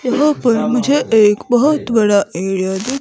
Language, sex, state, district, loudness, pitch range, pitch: Hindi, female, Himachal Pradesh, Shimla, -14 LUFS, 205-270 Hz, 235 Hz